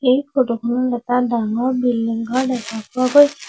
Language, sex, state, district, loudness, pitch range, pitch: Assamese, female, Assam, Sonitpur, -19 LUFS, 235-255 Hz, 250 Hz